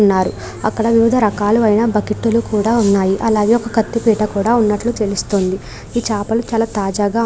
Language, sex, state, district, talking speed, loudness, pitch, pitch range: Telugu, female, Andhra Pradesh, Krishna, 150 wpm, -16 LUFS, 215 Hz, 205-230 Hz